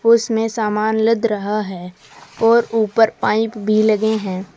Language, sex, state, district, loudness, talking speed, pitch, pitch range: Hindi, female, Uttar Pradesh, Saharanpur, -17 LUFS, 145 wpm, 220 Hz, 210-225 Hz